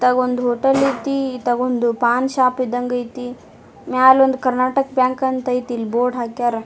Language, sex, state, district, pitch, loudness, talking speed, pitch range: Kannada, female, Karnataka, Dharwad, 250 Hz, -18 LUFS, 160 wpm, 245-260 Hz